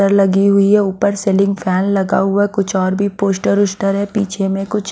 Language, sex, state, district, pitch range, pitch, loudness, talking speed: Hindi, female, Bihar, West Champaran, 195-200 Hz, 200 Hz, -15 LUFS, 220 wpm